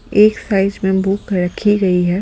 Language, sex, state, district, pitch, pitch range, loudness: Hindi, male, Delhi, New Delhi, 195 Hz, 185-205 Hz, -15 LUFS